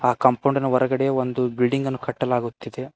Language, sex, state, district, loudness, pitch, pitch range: Kannada, male, Karnataka, Koppal, -22 LUFS, 130 Hz, 125-135 Hz